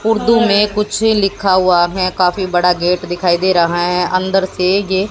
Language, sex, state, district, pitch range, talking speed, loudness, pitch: Hindi, female, Haryana, Jhajjar, 180-200 Hz, 190 wpm, -14 LUFS, 185 Hz